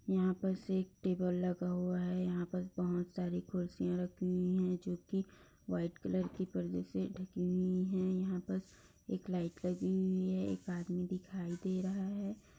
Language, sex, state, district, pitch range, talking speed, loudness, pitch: Hindi, female, Bihar, Bhagalpur, 180-185 Hz, 180 wpm, -38 LUFS, 180 Hz